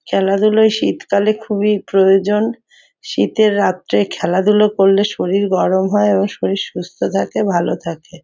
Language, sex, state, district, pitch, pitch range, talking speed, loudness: Bengali, female, West Bengal, Jhargram, 200 Hz, 190-210 Hz, 125 wpm, -15 LUFS